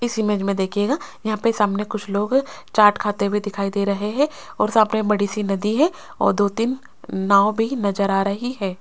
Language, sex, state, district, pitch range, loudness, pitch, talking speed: Hindi, female, Rajasthan, Jaipur, 200-225 Hz, -21 LUFS, 210 Hz, 210 wpm